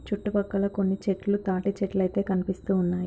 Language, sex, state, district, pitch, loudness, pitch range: Telugu, female, Andhra Pradesh, Anantapur, 195 Hz, -27 LUFS, 190-200 Hz